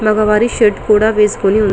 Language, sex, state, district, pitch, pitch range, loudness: Telugu, female, Telangana, Karimnagar, 215 Hz, 210-215 Hz, -12 LUFS